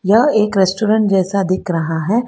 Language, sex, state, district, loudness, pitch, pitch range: Hindi, female, Karnataka, Bangalore, -15 LUFS, 195 Hz, 185-215 Hz